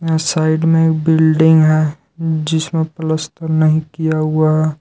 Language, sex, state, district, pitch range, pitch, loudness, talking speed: Hindi, male, Jharkhand, Deoghar, 155-160 Hz, 160 Hz, -15 LUFS, 125 wpm